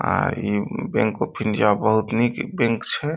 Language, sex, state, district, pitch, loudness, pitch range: Maithili, male, Bihar, Saharsa, 110 Hz, -22 LUFS, 105-120 Hz